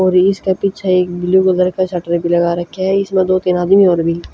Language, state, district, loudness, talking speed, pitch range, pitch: Haryanvi, Haryana, Rohtak, -14 LUFS, 275 wpm, 175-190 Hz, 185 Hz